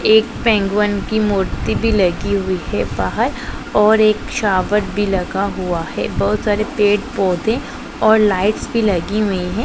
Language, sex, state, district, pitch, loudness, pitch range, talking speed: Hindi, female, Punjab, Pathankot, 205 Hz, -17 LUFS, 190-215 Hz, 160 wpm